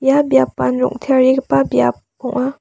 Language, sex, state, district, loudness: Garo, female, Meghalaya, West Garo Hills, -15 LUFS